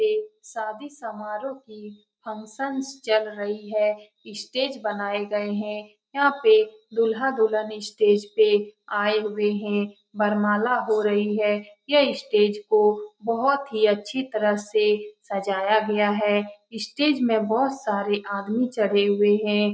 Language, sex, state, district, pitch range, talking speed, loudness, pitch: Hindi, female, Bihar, Saran, 210-230 Hz, 135 wpm, -23 LUFS, 210 Hz